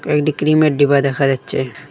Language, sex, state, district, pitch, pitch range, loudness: Bengali, male, Assam, Hailakandi, 145 Hz, 135-150 Hz, -16 LUFS